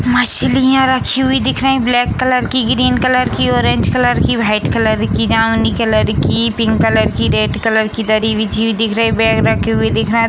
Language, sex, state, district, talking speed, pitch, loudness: Hindi, female, Bihar, Sitamarhi, 220 wpm, 220 Hz, -13 LUFS